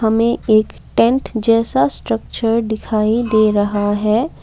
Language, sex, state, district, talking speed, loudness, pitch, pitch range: Hindi, female, Assam, Kamrup Metropolitan, 120 wpm, -16 LUFS, 220 Hz, 210-230 Hz